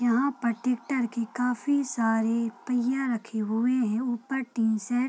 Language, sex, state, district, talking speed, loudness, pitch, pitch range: Hindi, female, Bihar, Purnia, 165 wpm, -27 LUFS, 240 Hz, 230-255 Hz